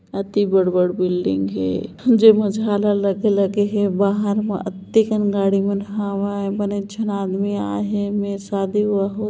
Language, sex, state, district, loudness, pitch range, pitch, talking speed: Hindi, female, Chhattisgarh, Bilaspur, -19 LUFS, 195-205 Hz, 200 Hz, 165 wpm